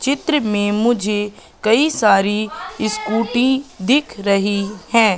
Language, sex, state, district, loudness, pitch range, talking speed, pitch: Hindi, female, Madhya Pradesh, Katni, -17 LUFS, 205-245 Hz, 105 wpm, 215 Hz